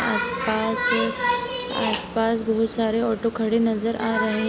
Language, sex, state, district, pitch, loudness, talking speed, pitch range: Hindi, female, Uttar Pradesh, Jalaun, 225 Hz, -23 LUFS, 135 wpm, 220-230 Hz